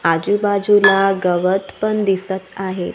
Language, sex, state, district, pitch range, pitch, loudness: Marathi, female, Maharashtra, Gondia, 185-205 Hz, 190 Hz, -17 LUFS